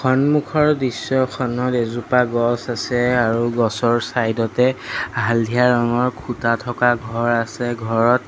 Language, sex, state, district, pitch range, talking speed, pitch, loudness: Assamese, male, Assam, Sonitpur, 115-125 Hz, 115 wpm, 120 Hz, -19 LUFS